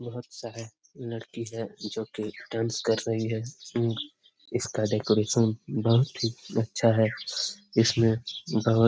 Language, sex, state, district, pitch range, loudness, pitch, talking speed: Hindi, male, Bihar, Jamui, 110-115 Hz, -28 LUFS, 115 Hz, 115 wpm